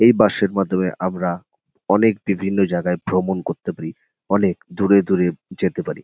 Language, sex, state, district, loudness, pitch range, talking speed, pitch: Bengali, male, West Bengal, North 24 Parganas, -20 LUFS, 90-100 Hz, 160 wpm, 95 Hz